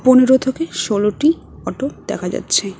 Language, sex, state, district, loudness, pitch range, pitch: Bengali, female, West Bengal, Cooch Behar, -17 LUFS, 205-275 Hz, 255 Hz